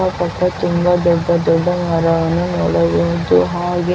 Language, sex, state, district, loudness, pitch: Kannada, female, Karnataka, Chamarajanagar, -16 LUFS, 170 Hz